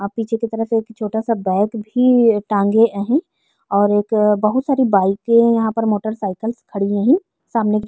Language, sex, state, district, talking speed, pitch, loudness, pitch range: Bhojpuri, female, Uttar Pradesh, Ghazipur, 175 wpm, 220 Hz, -17 LUFS, 205-230 Hz